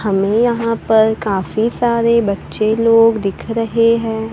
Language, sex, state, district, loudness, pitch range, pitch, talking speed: Hindi, female, Maharashtra, Gondia, -15 LUFS, 215-230 Hz, 225 Hz, 140 wpm